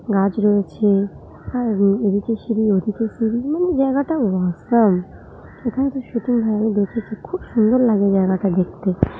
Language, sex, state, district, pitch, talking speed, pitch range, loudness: Bengali, female, West Bengal, Jhargram, 215 Hz, 130 wpm, 200-240 Hz, -19 LUFS